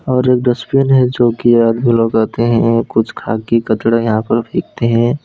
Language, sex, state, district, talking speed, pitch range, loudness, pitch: Hindi, male, West Bengal, Alipurduar, 185 wpm, 115-125 Hz, -14 LUFS, 115 Hz